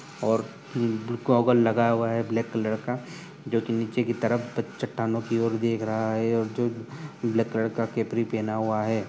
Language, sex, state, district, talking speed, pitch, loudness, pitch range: Hindi, male, Uttar Pradesh, Budaun, 185 wpm, 115 Hz, -26 LUFS, 110-120 Hz